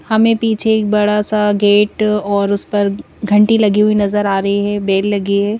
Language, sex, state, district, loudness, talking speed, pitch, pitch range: Hindi, female, Madhya Pradesh, Bhopal, -14 LUFS, 195 wpm, 210 Hz, 200-215 Hz